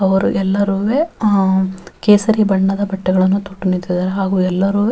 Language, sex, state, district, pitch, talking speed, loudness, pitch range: Kannada, female, Karnataka, Raichur, 195 Hz, 135 wpm, -16 LUFS, 190-200 Hz